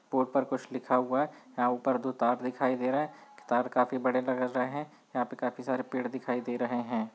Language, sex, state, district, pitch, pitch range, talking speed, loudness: Hindi, male, Chhattisgarh, Bilaspur, 130 Hz, 125-130 Hz, 245 wpm, -31 LUFS